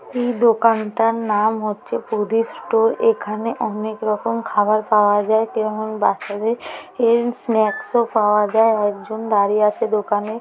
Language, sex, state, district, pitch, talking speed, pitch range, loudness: Bengali, female, West Bengal, Paschim Medinipur, 220 Hz, 125 wpm, 210-230 Hz, -19 LUFS